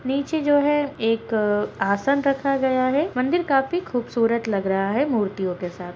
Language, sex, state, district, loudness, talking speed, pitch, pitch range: Hindi, female, Bihar, Kishanganj, -22 LUFS, 170 wpm, 250 Hz, 205-280 Hz